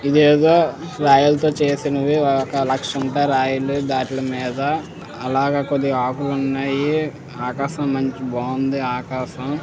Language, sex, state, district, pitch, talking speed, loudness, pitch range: Telugu, male, Andhra Pradesh, Visakhapatnam, 140 Hz, 105 wpm, -19 LUFS, 130-145 Hz